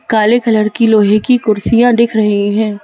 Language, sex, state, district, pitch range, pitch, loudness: Hindi, female, Madhya Pradesh, Bhopal, 210-235 Hz, 220 Hz, -11 LUFS